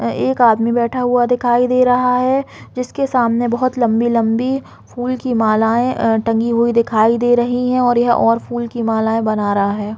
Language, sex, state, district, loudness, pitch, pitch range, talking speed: Hindi, female, Chhattisgarh, Bilaspur, -16 LUFS, 240 Hz, 225-250 Hz, 190 wpm